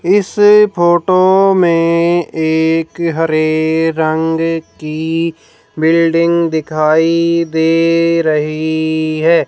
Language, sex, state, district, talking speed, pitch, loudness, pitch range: Hindi, female, Haryana, Jhajjar, 75 wpm, 165 Hz, -13 LUFS, 160-170 Hz